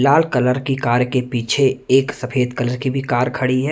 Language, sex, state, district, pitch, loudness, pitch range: Hindi, male, Punjab, Kapurthala, 125 Hz, -18 LUFS, 125-135 Hz